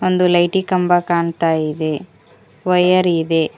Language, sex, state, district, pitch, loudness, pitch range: Kannada, female, Karnataka, Koppal, 175 Hz, -16 LUFS, 160-180 Hz